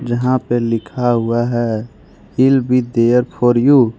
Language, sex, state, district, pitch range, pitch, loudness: Hindi, male, Jharkhand, Ranchi, 115-125 Hz, 120 Hz, -15 LUFS